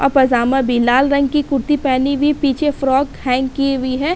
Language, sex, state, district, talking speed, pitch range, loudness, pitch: Hindi, female, Uttar Pradesh, Hamirpur, 215 wpm, 260-280 Hz, -16 LUFS, 270 Hz